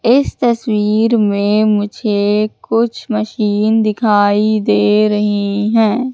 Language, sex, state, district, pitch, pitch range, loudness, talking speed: Hindi, female, Madhya Pradesh, Katni, 215 Hz, 210-225 Hz, -14 LUFS, 100 wpm